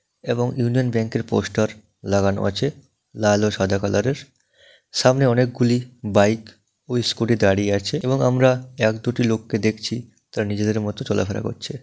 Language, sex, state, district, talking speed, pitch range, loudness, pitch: Bengali, male, West Bengal, Dakshin Dinajpur, 145 wpm, 105-125 Hz, -21 LUFS, 115 Hz